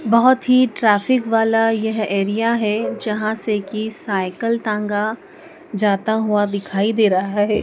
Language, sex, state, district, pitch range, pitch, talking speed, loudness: Hindi, female, Madhya Pradesh, Dhar, 205-230 Hz, 215 Hz, 140 wpm, -18 LUFS